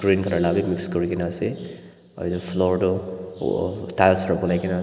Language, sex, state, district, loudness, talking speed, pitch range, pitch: Nagamese, male, Nagaland, Dimapur, -23 LUFS, 185 wpm, 85-95 Hz, 90 Hz